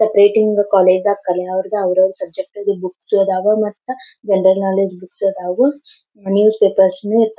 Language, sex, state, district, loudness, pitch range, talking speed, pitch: Kannada, female, Karnataka, Belgaum, -15 LUFS, 190-215 Hz, 140 wpm, 200 Hz